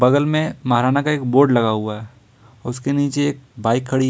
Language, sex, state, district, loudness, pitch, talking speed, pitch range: Hindi, male, Jharkhand, Ranchi, -19 LUFS, 130 Hz, 205 wpm, 120-140 Hz